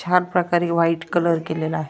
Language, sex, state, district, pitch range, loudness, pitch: Marathi, female, Maharashtra, Dhule, 160-175 Hz, -21 LUFS, 170 Hz